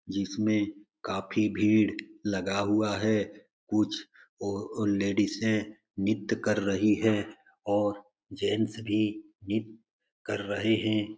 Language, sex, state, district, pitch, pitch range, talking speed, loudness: Hindi, male, Bihar, Jamui, 105 Hz, 100-110 Hz, 105 wpm, -29 LUFS